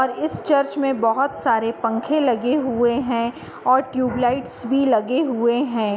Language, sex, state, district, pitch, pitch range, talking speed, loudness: Hindi, female, Uttar Pradesh, Muzaffarnagar, 250 Hz, 235-275 Hz, 160 wpm, -20 LUFS